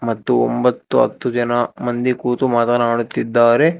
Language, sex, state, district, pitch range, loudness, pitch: Kannada, male, Karnataka, Bangalore, 115-125 Hz, -17 LUFS, 120 Hz